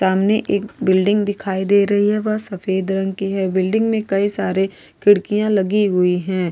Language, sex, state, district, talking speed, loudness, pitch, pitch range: Hindi, female, Goa, North and South Goa, 185 wpm, -18 LUFS, 195 Hz, 190-205 Hz